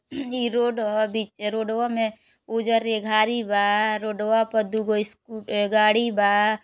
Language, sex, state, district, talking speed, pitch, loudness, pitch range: Bhojpuri, female, Uttar Pradesh, Gorakhpur, 125 wpm, 220 Hz, -23 LUFS, 215-225 Hz